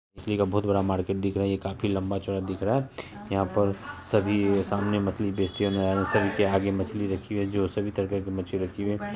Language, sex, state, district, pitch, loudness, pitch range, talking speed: Hindi, female, Bihar, Saharsa, 100 Hz, -27 LUFS, 95-105 Hz, 190 wpm